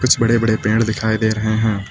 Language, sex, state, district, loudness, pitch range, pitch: Hindi, male, Uttar Pradesh, Lucknow, -17 LUFS, 110-115 Hz, 110 Hz